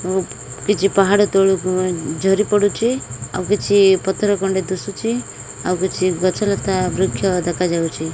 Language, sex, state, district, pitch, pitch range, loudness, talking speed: Odia, female, Odisha, Malkangiri, 190 Hz, 180-200 Hz, -18 LUFS, 125 wpm